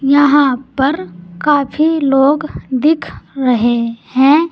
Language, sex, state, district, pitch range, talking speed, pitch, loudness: Hindi, female, Uttar Pradesh, Saharanpur, 245-290 Hz, 95 wpm, 275 Hz, -14 LUFS